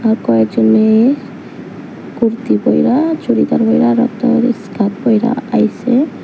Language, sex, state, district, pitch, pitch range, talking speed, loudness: Bengali, female, Tripura, Unakoti, 230 Hz, 205-250 Hz, 95 wpm, -13 LUFS